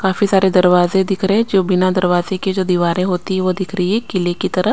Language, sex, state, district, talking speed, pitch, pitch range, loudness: Hindi, female, Chandigarh, Chandigarh, 255 wpm, 185 Hz, 180-195 Hz, -16 LUFS